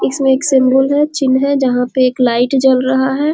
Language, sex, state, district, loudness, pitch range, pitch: Hindi, female, Bihar, Muzaffarpur, -13 LUFS, 255-275 Hz, 265 Hz